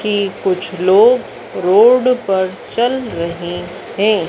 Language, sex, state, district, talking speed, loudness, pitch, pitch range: Hindi, female, Madhya Pradesh, Dhar, 110 wpm, -15 LUFS, 200 Hz, 185-250 Hz